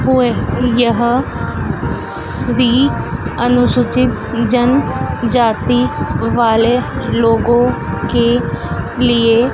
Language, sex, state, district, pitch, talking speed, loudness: Hindi, female, Madhya Pradesh, Dhar, 230 Hz, 65 wpm, -14 LUFS